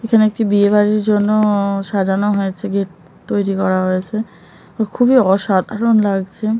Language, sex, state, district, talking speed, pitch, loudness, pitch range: Bengali, male, West Bengal, Jhargram, 125 wpm, 205 Hz, -16 LUFS, 190-215 Hz